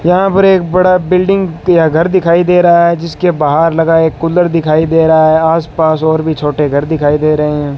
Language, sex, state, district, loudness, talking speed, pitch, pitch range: Hindi, male, Rajasthan, Bikaner, -10 LUFS, 225 wpm, 165 Hz, 155-175 Hz